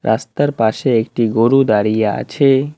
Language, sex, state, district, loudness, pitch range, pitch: Bengali, male, West Bengal, Cooch Behar, -15 LUFS, 110-135 Hz, 115 Hz